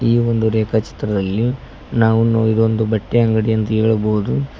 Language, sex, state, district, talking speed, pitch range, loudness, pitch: Kannada, male, Karnataka, Koppal, 145 wpm, 110-115 Hz, -17 LUFS, 110 Hz